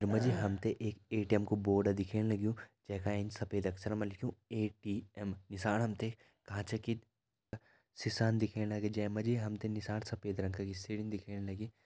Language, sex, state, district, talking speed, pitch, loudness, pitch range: Kumaoni, male, Uttarakhand, Tehri Garhwal, 190 wpm, 105 Hz, -38 LUFS, 100-110 Hz